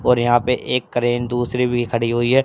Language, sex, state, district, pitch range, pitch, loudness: Hindi, male, Haryana, Charkhi Dadri, 120-125 Hz, 120 Hz, -19 LUFS